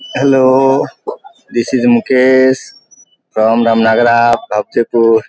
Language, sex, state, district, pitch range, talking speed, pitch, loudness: Hindi, male, Bihar, Sitamarhi, 115-130 Hz, 80 wpm, 120 Hz, -11 LUFS